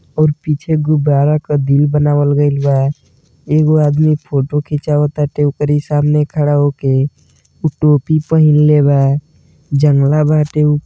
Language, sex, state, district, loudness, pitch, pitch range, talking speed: Bhojpuri, male, Uttar Pradesh, Deoria, -13 LUFS, 150 Hz, 145-150 Hz, 125 wpm